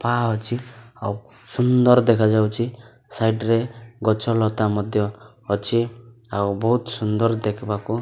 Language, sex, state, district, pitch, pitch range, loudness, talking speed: Odia, male, Odisha, Malkangiri, 115 Hz, 110-120 Hz, -21 LUFS, 120 wpm